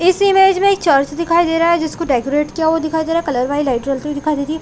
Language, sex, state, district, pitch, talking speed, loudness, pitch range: Hindi, female, Chhattisgarh, Bilaspur, 320 Hz, 335 wpm, -15 LUFS, 285-340 Hz